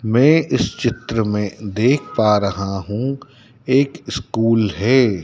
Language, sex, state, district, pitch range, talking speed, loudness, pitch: Hindi, male, Madhya Pradesh, Dhar, 105-130 Hz, 125 wpm, -18 LUFS, 115 Hz